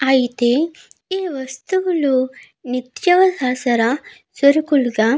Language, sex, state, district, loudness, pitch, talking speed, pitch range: Telugu, female, Andhra Pradesh, Guntur, -18 LUFS, 265 Hz, 60 wpm, 250-340 Hz